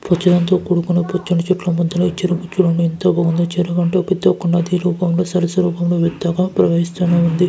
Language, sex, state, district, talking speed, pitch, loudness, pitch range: Telugu, male, Karnataka, Dharwad, 175 wpm, 175 Hz, -17 LUFS, 170-180 Hz